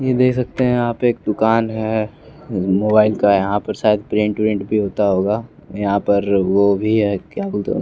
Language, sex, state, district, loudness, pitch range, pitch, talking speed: Hindi, male, Bihar, West Champaran, -18 LUFS, 100-115 Hz, 105 Hz, 215 wpm